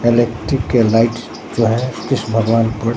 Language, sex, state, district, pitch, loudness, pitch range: Hindi, male, Bihar, Katihar, 115 Hz, -16 LUFS, 115-120 Hz